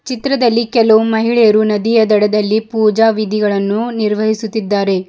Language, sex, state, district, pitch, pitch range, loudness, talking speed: Kannada, female, Karnataka, Bidar, 220 Hz, 210-225 Hz, -13 LUFS, 95 wpm